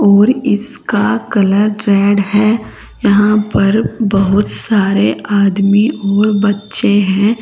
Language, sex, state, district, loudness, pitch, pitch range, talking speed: Hindi, female, Uttar Pradesh, Saharanpur, -13 LUFS, 205 Hz, 200-210 Hz, 105 wpm